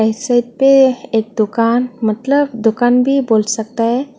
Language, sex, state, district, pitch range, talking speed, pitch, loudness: Hindi, female, Tripura, West Tripura, 220-260 Hz, 145 wpm, 240 Hz, -14 LUFS